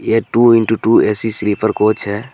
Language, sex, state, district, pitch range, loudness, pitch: Hindi, male, Jharkhand, Garhwa, 105-115 Hz, -14 LUFS, 110 Hz